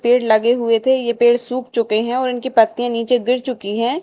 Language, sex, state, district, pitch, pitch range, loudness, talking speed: Hindi, female, Madhya Pradesh, Dhar, 240 Hz, 230-250 Hz, -17 LUFS, 240 wpm